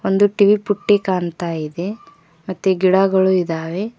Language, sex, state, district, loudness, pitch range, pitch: Kannada, female, Karnataka, Koppal, -17 LUFS, 175-205 Hz, 190 Hz